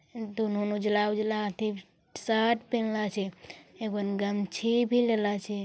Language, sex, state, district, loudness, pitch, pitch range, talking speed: Angika, female, Bihar, Bhagalpur, -29 LUFS, 210 Hz, 205-220 Hz, 140 wpm